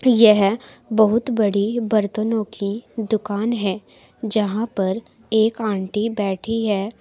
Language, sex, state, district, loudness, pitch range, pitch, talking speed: Hindi, female, Uttar Pradesh, Shamli, -20 LUFS, 205-225 Hz, 215 Hz, 110 wpm